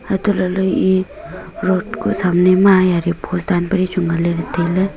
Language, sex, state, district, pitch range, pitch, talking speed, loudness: Wancho, female, Arunachal Pradesh, Longding, 175-190 Hz, 185 Hz, 180 wpm, -16 LUFS